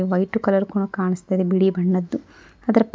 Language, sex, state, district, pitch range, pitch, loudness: Kannada, female, Karnataka, Koppal, 185-200 Hz, 190 Hz, -21 LUFS